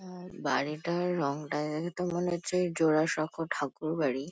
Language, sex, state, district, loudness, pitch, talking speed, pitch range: Bengali, female, West Bengal, Kolkata, -31 LUFS, 160 Hz, 125 wpm, 150-175 Hz